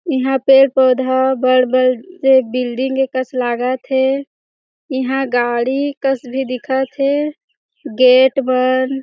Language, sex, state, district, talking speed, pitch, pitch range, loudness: Chhattisgarhi, female, Chhattisgarh, Jashpur, 120 wpm, 260 Hz, 255-270 Hz, -15 LUFS